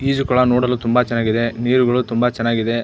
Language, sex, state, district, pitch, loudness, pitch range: Kannada, male, Karnataka, Belgaum, 125 Hz, -17 LUFS, 115-125 Hz